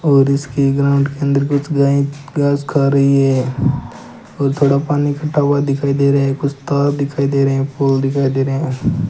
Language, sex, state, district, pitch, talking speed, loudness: Hindi, male, Rajasthan, Bikaner, 140 Hz, 205 wpm, -16 LUFS